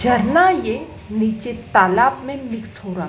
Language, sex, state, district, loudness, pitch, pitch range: Hindi, female, Madhya Pradesh, Dhar, -18 LUFS, 235 Hz, 215-265 Hz